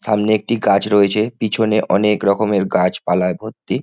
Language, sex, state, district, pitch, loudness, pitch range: Bengali, male, West Bengal, Jhargram, 105 Hz, -16 LUFS, 100-110 Hz